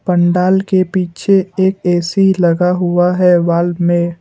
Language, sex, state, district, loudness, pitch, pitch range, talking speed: Hindi, male, Assam, Kamrup Metropolitan, -13 LUFS, 180 Hz, 175-190 Hz, 140 wpm